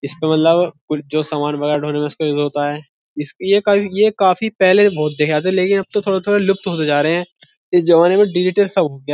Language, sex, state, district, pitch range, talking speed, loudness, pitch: Hindi, male, Uttar Pradesh, Jyotiba Phule Nagar, 150-195 Hz, 235 wpm, -16 LUFS, 165 Hz